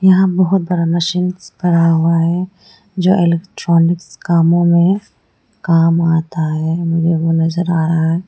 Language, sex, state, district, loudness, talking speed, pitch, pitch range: Hindi, female, Arunachal Pradesh, Lower Dibang Valley, -14 LUFS, 140 wpm, 170 Hz, 165-180 Hz